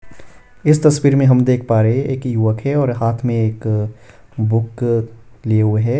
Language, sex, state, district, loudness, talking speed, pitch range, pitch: Hindi, male, Himachal Pradesh, Shimla, -16 LUFS, 190 wpm, 110-125 Hz, 115 Hz